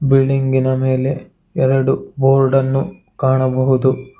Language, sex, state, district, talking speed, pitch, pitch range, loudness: Kannada, male, Karnataka, Bangalore, 100 wpm, 135 Hz, 130-135 Hz, -16 LUFS